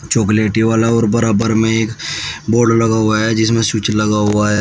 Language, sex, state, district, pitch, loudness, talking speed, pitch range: Hindi, male, Uttar Pradesh, Shamli, 110 Hz, -14 LUFS, 195 wpm, 105-115 Hz